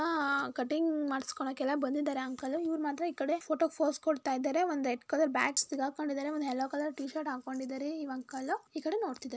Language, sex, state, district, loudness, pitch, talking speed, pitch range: Kannada, female, Karnataka, Mysore, -34 LUFS, 290 Hz, 140 wpm, 265-315 Hz